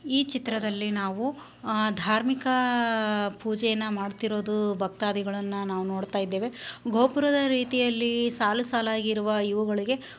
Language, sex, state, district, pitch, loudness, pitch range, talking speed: Kannada, female, Karnataka, Belgaum, 220 Hz, -27 LUFS, 205-245 Hz, 90 wpm